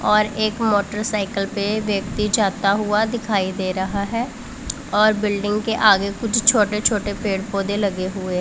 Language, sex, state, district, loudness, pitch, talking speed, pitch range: Hindi, female, Punjab, Pathankot, -20 LUFS, 210 Hz, 155 wpm, 200-215 Hz